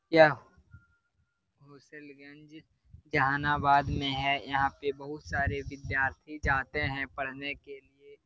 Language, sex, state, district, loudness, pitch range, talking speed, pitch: Hindi, male, Bihar, Jahanabad, -29 LUFS, 135-150 Hz, 100 wpm, 140 Hz